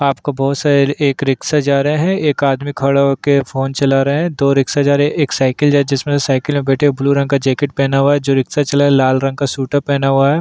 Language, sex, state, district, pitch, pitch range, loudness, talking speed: Hindi, male, Uttarakhand, Tehri Garhwal, 140 Hz, 135-145 Hz, -14 LUFS, 305 wpm